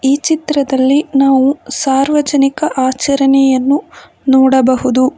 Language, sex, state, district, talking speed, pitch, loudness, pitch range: Kannada, female, Karnataka, Bangalore, 70 wpm, 275 Hz, -12 LUFS, 265-285 Hz